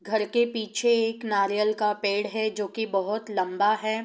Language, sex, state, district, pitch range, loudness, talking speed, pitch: Hindi, female, Bihar, East Champaran, 205-220 Hz, -26 LUFS, 195 wpm, 215 Hz